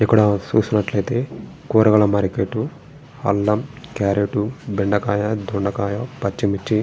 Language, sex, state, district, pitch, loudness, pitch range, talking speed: Telugu, male, Andhra Pradesh, Srikakulam, 105 Hz, -20 LUFS, 100-115 Hz, 95 wpm